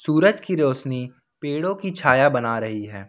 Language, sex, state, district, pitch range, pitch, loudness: Hindi, male, Jharkhand, Ranchi, 125-165 Hz, 135 Hz, -21 LUFS